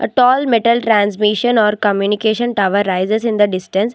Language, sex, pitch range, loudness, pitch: English, female, 205-235 Hz, -14 LUFS, 210 Hz